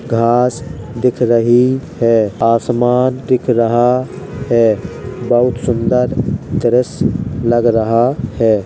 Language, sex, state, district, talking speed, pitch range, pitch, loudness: Hindi, male, Uttar Pradesh, Jalaun, 90 wpm, 115-125 Hz, 120 Hz, -14 LUFS